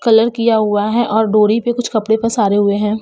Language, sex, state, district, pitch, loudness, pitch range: Hindi, female, Uttar Pradesh, Jalaun, 220 Hz, -14 LUFS, 210-230 Hz